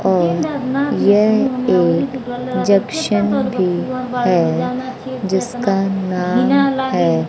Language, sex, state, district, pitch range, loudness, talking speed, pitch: Hindi, female, Bihar, West Champaran, 185-255 Hz, -17 LUFS, 75 wpm, 220 Hz